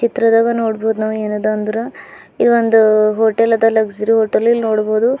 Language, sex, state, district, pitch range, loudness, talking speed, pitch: Kannada, female, Karnataka, Bidar, 215-230 Hz, -14 LUFS, 150 wpm, 225 Hz